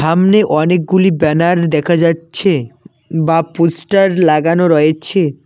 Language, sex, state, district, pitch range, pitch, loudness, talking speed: Bengali, male, West Bengal, Cooch Behar, 155-180 Hz, 165 Hz, -13 LUFS, 100 wpm